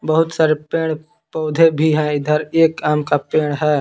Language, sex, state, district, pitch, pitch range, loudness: Hindi, male, Jharkhand, Palamu, 155 Hz, 150-160 Hz, -17 LUFS